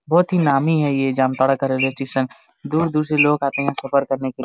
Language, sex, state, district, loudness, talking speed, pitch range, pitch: Hindi, male, Jharkhand, Jamtara, -19 LUFS, 255 wpm, 135-150 Hz, 140 Hz